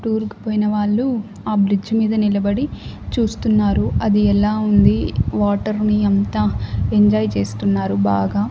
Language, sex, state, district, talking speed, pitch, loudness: Telugu, male, Andhra Pradesh, Annamaya, 125 wpm, 195 Hz, -18 LUFS